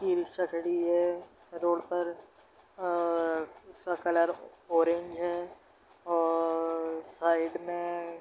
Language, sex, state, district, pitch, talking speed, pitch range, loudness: Hindi, male, Bihar, Darbhanga, 170 Hz, 100 wpm, 165-175 Hz, -31 LUFS